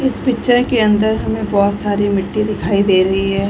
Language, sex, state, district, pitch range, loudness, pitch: Hindi, female, Bihar, Darbhanga, 200-220 Hz, -15 LUFS, 205 Hz